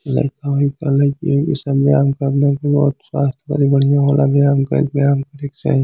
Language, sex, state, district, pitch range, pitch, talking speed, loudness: Bhojpuri, male, Uttar Pradesh, Gorakhpur, 140-145 Hz, 140 Hz, 175 wpm, -16 LUFS